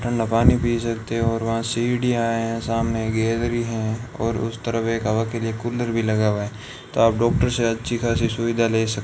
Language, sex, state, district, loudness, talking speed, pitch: Hindi, male, Rajasthan, Bikaner, -22 LUFS, 220 wpm, 115 Hz